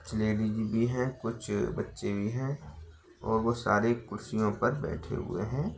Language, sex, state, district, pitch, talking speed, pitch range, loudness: Hindi, male, Bihar, Bhagalpur, 110 Hz, 165 wpm, 105-120 Hz, -31 LUFS